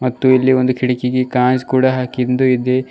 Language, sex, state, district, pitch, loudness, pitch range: Kannada, male, Karnataka, Bidar, 130 Hz, -15 LUFS, 125-130 Hz